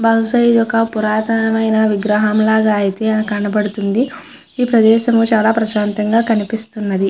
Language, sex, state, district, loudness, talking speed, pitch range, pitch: Telugu, female, Andhra Pradesh, Chittoor, -15 LUFS, 110 wpm, 210-225 Hz, 220 Hz